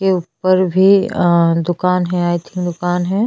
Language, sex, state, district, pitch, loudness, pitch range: Hindi, female, Chhattisgarh, Bastar, 180 Hz, -15 LUFS, 175-185 Hz